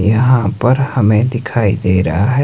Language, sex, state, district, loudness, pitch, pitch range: Hindi, male, Himachal Pradesh, Shimla, -14 LUFS, 115 Hz, 100-125 Hz